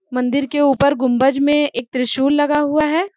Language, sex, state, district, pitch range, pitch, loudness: Hindi, female, Jharkhand, Sahebganj, 265-295 Hz, 280 Hz, -16 LUFS